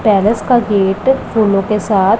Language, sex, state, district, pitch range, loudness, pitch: Hindi, female, Punjab, Pathankot, 200-230 Hz, -13 LUFS, 210 Hz